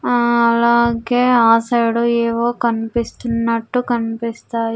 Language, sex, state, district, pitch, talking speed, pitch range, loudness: Telugu, female, Andhra Pradesh, Sri Satya Sai, 235 Hz, 90 wpm, 230-240 Hz, -16 LUFS